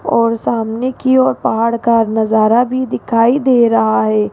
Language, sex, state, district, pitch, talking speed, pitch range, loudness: Hindi, female, Rajasthan, Jaipur, 230 Hz, 165 wpm, 220-250 Hz, -13 LUFS